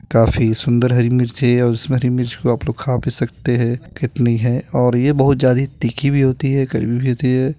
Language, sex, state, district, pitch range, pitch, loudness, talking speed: Hindi, male, Bihar, Purnia, 120-135 Hz, 125 Hz, -17 LUFS, 220 wpm